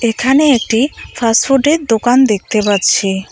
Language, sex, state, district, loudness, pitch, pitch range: Bengali, female, West Bengal, Cooch Behar, -12 LUFS, 230 Hz, 215-270 Hz